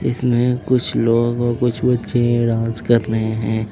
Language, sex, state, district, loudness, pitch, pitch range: Hindi, female, Uttar Pradesh, Lucknow, -18 LUFS, 120 Hz, 115-120 Hz